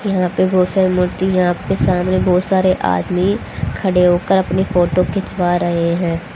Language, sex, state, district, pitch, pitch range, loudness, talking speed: Hindi, female, Haryana, Jhajjar, 180 Hz, 175-190 Hz, -16 LUFS, 180 wpm